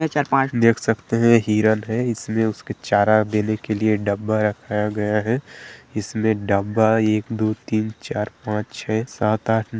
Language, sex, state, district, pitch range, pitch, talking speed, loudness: Hindi, male, Chhattisgarh, Sarguja, 105-115 Hz, 110 Hz, 170 wpm, -21 LUFS